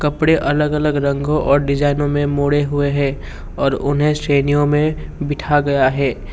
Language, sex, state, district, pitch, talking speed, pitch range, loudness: Hindi, male, Assam, Kamrup Metropolitan, 145 Hz, 160 wpm, 140-150 Hz, -17 LUFS